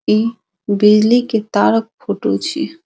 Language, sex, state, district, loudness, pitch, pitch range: Maithili, female, Bihar, Saharsa, -15 LUFS, 220 Hz, 210-230 Hz